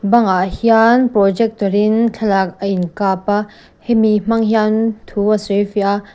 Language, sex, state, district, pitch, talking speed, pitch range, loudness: Mizo, female, Mizoram, Aizawl, 210 Hz, 155 wpm, 200-225 Hz, -15 LUFS